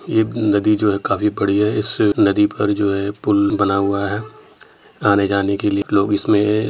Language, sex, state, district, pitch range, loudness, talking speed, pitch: Hindi, male, Uttar Pradesh, Etah, 100-105 Hz, -17 LUFS, 205 wpm, 105 Hz